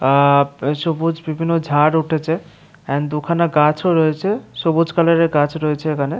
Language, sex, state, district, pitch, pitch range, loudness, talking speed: Bengali, male, West Bengal, Paschim Medinipur, 160 Hz, 150-165 Hz, -17 LUFS, 135 wpm